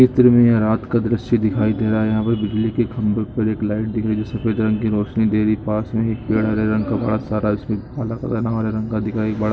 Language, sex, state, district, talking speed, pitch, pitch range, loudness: Hindi, male, Jharkhand, Sahebganj, 285 wpm, 110 Hz, 110-115 Hz, -19 LUFS